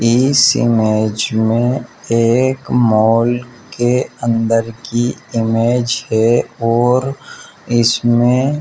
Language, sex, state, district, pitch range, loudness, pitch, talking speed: Hindi, male, Bihar, Jamui, 115-125 Hz, -15 LUFS, 120 Hz, 90 wpm